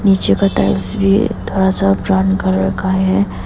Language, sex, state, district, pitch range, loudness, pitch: Hindi, female, Arunachal Pradesh, Papum Pare, 95-100 Hz, -15 LUFS, 95 Hz